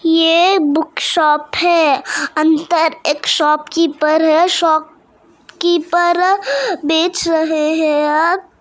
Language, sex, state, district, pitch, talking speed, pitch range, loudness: Hindi, female, Uttar Pradesh, Muzaffarnagar, 320 Hz, 90 wpm, 310-345 Hz, -14 LUFS